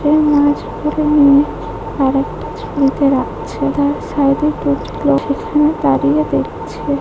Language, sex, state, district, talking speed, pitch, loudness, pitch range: Bengali, female, West Bengal, Jhargram, 105 wpm, 285 Hz, -15 LUFS, 265-295 Hz